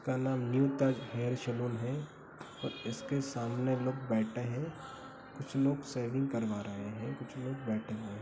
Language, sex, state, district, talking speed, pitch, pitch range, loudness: Hindi, male, Bihar, Sitamarhi, 160 wpm, 125 Hz, 115-135 Hz, -36 LUFS